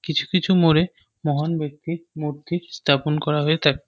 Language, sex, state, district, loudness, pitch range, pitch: Bengali, male, West Bengal, North 24 Parganas, -22 LUFS, 150-170 Hz, 155 Hz